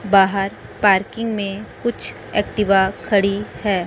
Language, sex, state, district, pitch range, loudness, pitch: Hindi, female, Chandigarh, Chandigarh, 195-210 Hz, -19 LUFS, 200 Hz